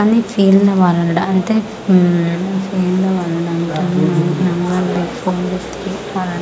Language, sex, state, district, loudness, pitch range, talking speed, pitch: Telugu, female, Andhra Pradesh, Manyam, -15 LUFS, 175-195 Hz, 105 wpm, 185 Hz